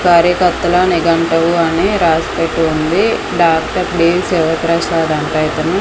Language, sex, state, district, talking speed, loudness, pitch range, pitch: Telugu, female, Andhra Pradesh, Manyam, 115 wpm, -13 LUFS, 160-175 Hz, 170 Hz